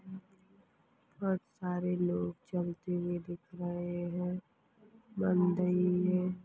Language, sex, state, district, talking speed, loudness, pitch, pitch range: Hindi, female, Chhattisgarh, Bastar, 95 wpm, -34 LUFS, 180 Hz, 175-190 Hz